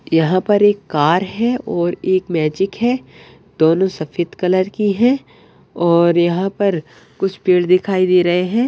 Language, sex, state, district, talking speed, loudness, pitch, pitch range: Hindi, male, Maharashtra, Solapur, 160 wpm, -16 LUFS, 185 Hz, 170-205 Hz